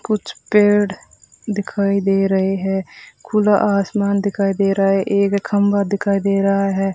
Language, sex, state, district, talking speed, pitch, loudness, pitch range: Hindi, female, Rajasthan, Bikaner, 155 wpm, 200 Hz, -17 LUFS, 195-205 Hz